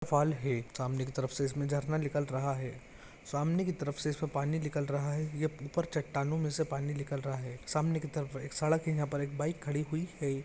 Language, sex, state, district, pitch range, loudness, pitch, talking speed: Hindi, male, Maharashtra, Pune, 140-155 Hz, -34 LUFS, 145 Hz, 235 wpm